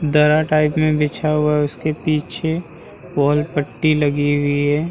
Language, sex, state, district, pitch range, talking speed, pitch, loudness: Hindi, male, Bihar, Vaishali, 145-155 Hz, 170 wpm, 150 Hz, -18 LUFS